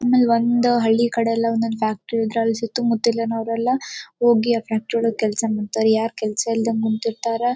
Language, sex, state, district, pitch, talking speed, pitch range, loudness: Kannada, female, Karnataka, Dharwad, 230 Hz, 160 wpm, 225-235 Hz, -20 LUFS